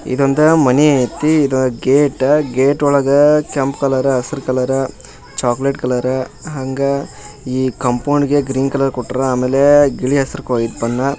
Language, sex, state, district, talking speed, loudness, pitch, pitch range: Kannada, male, Karnataka, Dharwad, 120 wpm, -15 LUFS, 135 Hz, 130-140 Hz